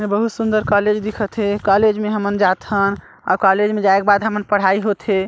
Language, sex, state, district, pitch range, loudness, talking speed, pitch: Chhattisgarhi, female, Chhattisgarh, Sarguja, 200-210 Hz, -17 LUFS, 215 wpm, 205 Hz